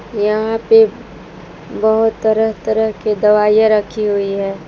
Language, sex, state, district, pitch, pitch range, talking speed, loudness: Hindi, female, Jharkhand, Palamu, 215 Hz, 200-220 Hz, 130 wpm, -14 LUFS